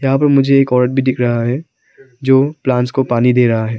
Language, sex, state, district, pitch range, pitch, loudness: Hindi, male, Arunachal Pradesh, Papum Pare, 125-135 Hz, 130 Hz, -14 LUFS